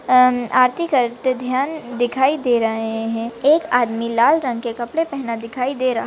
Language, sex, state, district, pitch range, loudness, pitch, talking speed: Hindi, female, Maharashtra, Chandrapur, 235-265 Hz, -19 LUFS, 250 Hz, 205 wpm